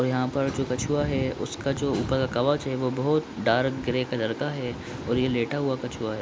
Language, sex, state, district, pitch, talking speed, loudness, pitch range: Hindi, male, Bihar, Supaul, 130 Hz, 230 wpm, -27 LUFS, 125-140 Hz